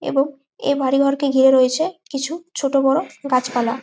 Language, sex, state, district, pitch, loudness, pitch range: Bengali, female, West Bengal, Malda, 275 Hz, -19 LUFS, 265-285 Hz